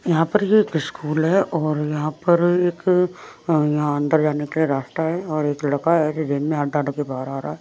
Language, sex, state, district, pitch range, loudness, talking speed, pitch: Hindi, male, Bihar, West Champaran, 150-170 Hz, -21 LUFS, 245 wpm, 155 Hz